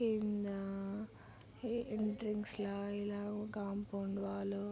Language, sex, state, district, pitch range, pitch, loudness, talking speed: Telugu, female, Andhra Pradesh, Krishna, 200-210 Hz, 205 Hz, -41 LUFS, 100 wpm